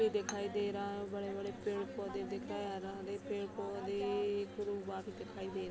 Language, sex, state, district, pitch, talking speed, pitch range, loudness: Hindi, female, Uttar Pradesh, Budaun, 200 Hz, 180 wpm, 200-205 Hz, -40 LUFS